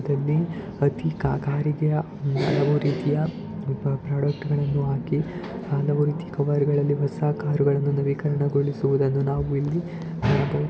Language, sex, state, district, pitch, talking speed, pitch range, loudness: Kannada, male, Karnataka, Dakshina Kannada, 145 Hz, 85 wpm, 140-150 Hz, -24 LUFS